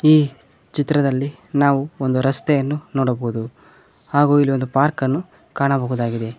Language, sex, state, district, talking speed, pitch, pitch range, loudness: Kannada, male, Karnataka, Koppal, 95 wpm, 140 Hz, 130-145 Hz, -19 LUFS